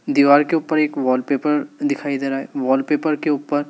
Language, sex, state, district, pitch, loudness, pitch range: Hindi, male, Madhya Pradesh, Dhar, 145 Hz, -19 LUFS, 135-150 Hz